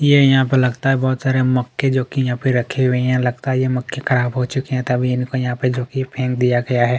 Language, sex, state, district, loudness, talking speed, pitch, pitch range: Hindi, male, Chhattisgarh, Kabirdham, -18 LUFS, 300 wpm, 130 Hz, 125-130 Hz